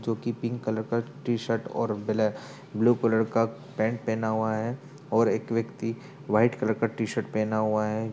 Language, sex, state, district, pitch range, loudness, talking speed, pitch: Hindi, male, Uttar Pradesh, Budaun, 110-115 Hz, -28 LUFS, 185 wpm, 115 Hz